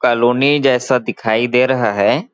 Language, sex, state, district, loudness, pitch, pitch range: Hindi, male, Chhattisgarh, Balrampur, -15 LUFS, 125 Hz, 120-130 Hz